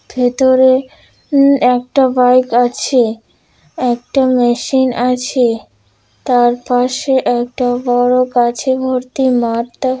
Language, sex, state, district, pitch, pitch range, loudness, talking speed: Bengali, female, West Bengal, Dakshin Dinajpur, 250 Hz, 245-260 Hz, -13 LUFS, 110 wpm